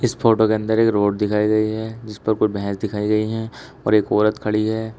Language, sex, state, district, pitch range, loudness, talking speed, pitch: Hindi, male, Uttar Pradesh, Shamli, 105-110 Hz, -20 LUFS, 240 wpm, 110 Hz